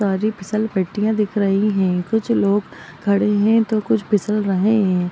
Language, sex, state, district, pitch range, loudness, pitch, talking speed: Magahi, female, Bihar, Gaya, 195-215 Hz, -19 LUFS, 210 Hz, 175 wpm